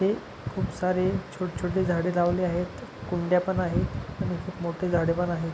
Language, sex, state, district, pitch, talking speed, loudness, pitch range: Marathi, male, Maharashtra, Pune, 180 Hz, 185 wpm, -28 LUFS, 175-185 Hz